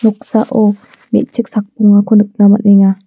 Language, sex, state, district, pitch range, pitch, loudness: Garo, female, Meghalaya, West Garo Hills, 205-220 Hz, 210 Hz, -11 LUFS